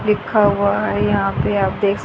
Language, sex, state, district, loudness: Hindi, female, Haryana, Charkhi Dadri, -17 LUFS